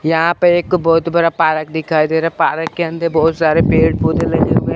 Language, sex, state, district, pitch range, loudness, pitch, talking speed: Hindi, male, Chandigarh, Chandigarh, 160-170 Hz, -14 LUFS, 165 Hz, 250 wpm